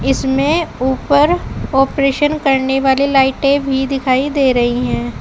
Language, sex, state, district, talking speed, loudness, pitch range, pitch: Hindi, female, Uttar Pradesh, Saharanpur, 125 wpm, -14 LUFS, 260-280 Hz, 270 Hz